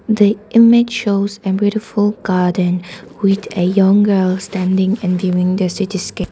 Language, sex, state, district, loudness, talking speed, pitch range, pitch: English, female, Nagaland, Dimapur, -15 LUFS, 150 wpm, 185-205 Hz, 195 Hz